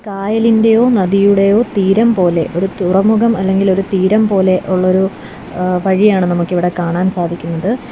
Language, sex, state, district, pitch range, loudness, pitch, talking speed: Malayalam, female, Kerala, Kollam, 180-210 Hz, -13 LUFS, 190 Hz, 120 wpm